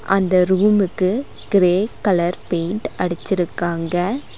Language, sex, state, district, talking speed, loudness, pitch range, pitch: Tamil, female, Tamil Nadu, Nilgiris, 80 wpm, -19 LUFS, 175-200 Hz, 185 Hz